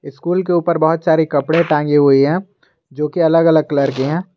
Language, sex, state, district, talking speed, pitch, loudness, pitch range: Hindi, male, Jharkhand, Garhwa, 220 wpm, 160 Hz, -15 LUFS, 145-170 Hz